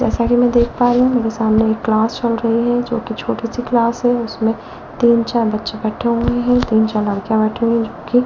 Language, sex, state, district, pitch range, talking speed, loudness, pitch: Hindi, female, Delhi, New Delhi, 220-240 Hz, 240 wpm, -16 LUFS, 230 Hz